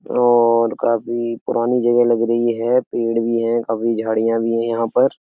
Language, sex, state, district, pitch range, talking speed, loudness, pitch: Hindi, male, Uttar Pradesh, Etah, 115-120 Hz, 185 wpm, -18 LUFS, 115 Hz